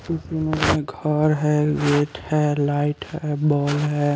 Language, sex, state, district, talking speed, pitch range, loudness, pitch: Hindi, male, Chandigarh, Chandigarh, 115 wpm, 145-155 Hz, -21 LUFS, 150 Hz